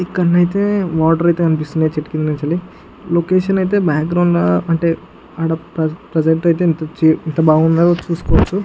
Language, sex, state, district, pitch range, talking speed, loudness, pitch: Telugu, male, Andhra Pradesh, Guntur, 160-175 Hz, 130 wpm, -16 LUFS, 165 Hz